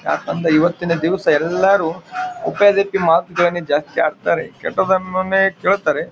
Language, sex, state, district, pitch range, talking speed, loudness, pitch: Kannada, male, Karnataka, Bijapur, 165-195 Hz, 100 wpm, -17 LUFS, 180 Hz